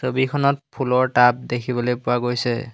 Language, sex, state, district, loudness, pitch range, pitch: Assamese, male, Assam, Hailakandi, -20 LUFS, 120-130 Hz, 125 Hz